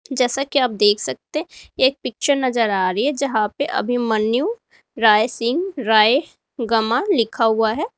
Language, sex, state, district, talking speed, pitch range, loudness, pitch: Hindi, female, Uttar Pradesh, Lalitpur, 165 wpm, 220-280 Hz, -19 LUFS, 245 Hz